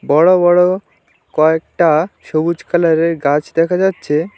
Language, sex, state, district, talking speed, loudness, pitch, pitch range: Bengali, male, West Bengal, Alipurduar, 110 wpm, -14 LUFS, 165 Hz, 155-180 Hz